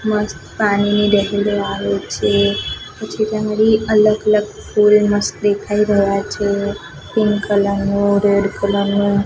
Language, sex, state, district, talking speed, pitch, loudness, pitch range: Gujarati, female, Gujarat, Gandhinagar, 125 wpm, 205 Hz, -16 LUFS, 200-210 Hz